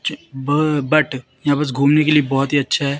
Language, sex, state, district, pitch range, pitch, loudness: Hindi, female, Madhya Pradesh, Katni, 135-150 Hz, 145 Hz, -17 LUFS